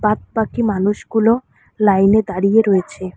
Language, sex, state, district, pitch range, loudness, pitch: Bengali, female, West Bengal, Alipurduar, 195-220 Hz, -16 LUFS, 210 Hz